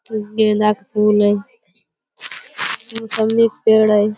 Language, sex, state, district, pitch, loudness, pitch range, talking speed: Hindi, female, Uttar Pradesh, Budaun, 215 Hz, -17 LUFS, 210-225 Hz, 115 wpm